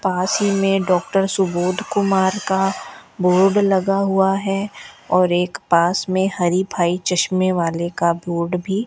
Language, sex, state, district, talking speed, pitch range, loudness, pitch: Hindi, female, Rajasthan, Bikaner, 155 wpm, 175-195 Hz, -18 LUFS, 185 Hz